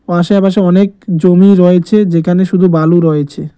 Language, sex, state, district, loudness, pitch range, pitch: Bengali, male, West Bengal, Cooch Behar, -9 LUFS, 170-195 Hz, 180 Hz